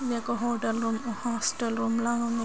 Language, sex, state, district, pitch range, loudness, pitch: Telugu, female, Andhra Pradesh, Srikakulam, 225-235 Hz, -29 LUFS, 230 Hz